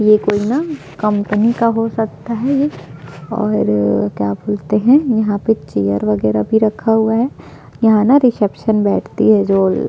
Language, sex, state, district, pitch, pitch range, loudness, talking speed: Hindi, female, Chhattisgarh, Sukma, 215 Hz, 190-230 Hz, -15 LUFS, 170 wpm